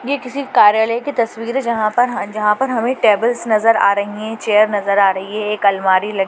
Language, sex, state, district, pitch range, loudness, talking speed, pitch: Hindi, female, Rajasthan, Churu, 205-235 Hz, -16 LUFS, 240 wpm, 220 Hz